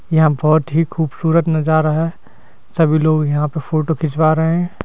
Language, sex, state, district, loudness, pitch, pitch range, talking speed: Hindi, male, Madhya Pradesh, Bhopal, -16 LUFS, 155 Hz, 155-160 Hz, 160 wpm